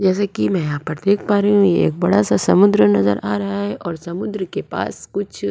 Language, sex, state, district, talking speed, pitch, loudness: Hindi, female, Goa, North and South Goa, 260 wpm, 170 Hz, -18 LUFS